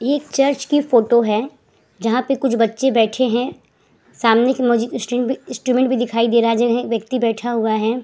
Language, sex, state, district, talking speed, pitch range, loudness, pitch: Hindi, female, Uttar Pradesh, Hamirpur, 195 wpm, 230-255 Hz, -18 LUFS, 240 Hz